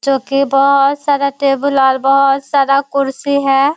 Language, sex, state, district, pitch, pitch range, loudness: Hindi, female, Bihar, Kishanganj, 275 Hz, 275-280 Hz, -13 LUFS